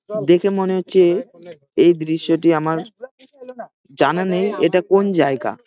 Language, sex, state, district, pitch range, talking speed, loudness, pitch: Bengali, male, West Bengal, Jalpaiguri, 160-200 Hz, 115 wpm, -17 LUFS, 180 Hz